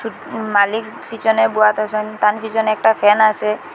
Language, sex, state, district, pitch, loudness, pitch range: Bengali, female, Assam, Hailakandi, 215 Hz, -16 LUFS, 215-220 Hz